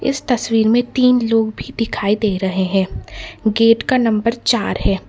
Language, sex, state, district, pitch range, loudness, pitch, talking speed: Hindi, female, Karnataka, Bangalore, 215-245 Hz, -17 LUFS, 225 Hz, 175 wpm